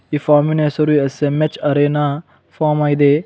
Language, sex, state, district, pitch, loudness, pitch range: Kannada, male, Karnataka, Bidar, 150 Hz, -16 LUFS, 145-150 Hz